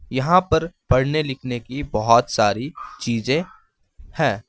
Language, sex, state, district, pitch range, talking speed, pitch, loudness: Hindi, male, West Bengal, Alipurduar, 120-160 Hz, 120 wpm, 130 Hz, -21 LUFS